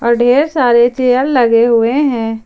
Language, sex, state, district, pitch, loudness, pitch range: Hindi, female, Jharkhand, Ranchi, 240 Hz, -11 LUFS, 235-260 Hz